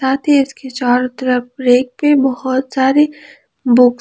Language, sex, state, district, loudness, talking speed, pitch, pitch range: Hindi, female, Jharkhand, Ranchi, -14 LUFS, 165 wpm, 260 Hz, 250-275 Hz